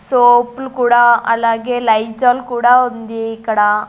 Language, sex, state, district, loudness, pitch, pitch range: Telugu, female, Andhra Pradesh, Sri Satya Sai, -14 LUFS, 240 Hz, 225-245 Hz